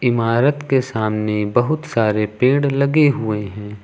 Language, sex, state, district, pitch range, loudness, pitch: Hindi, male, Uttar Pradesh, Lucknow, 105-140 Hz, -18 LUFS, 120 Hz